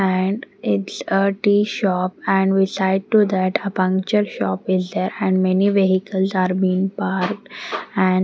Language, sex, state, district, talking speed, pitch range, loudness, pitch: English, female, Haryana, Jhajjar, 160 wpm, 185-200 Hz, -19 LUFS, 190 Hz